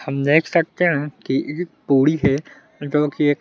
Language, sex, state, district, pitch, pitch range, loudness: Hindi, male, Bihar, Kaimur, 150 Hz, 140-160 Hz, -19 LUFS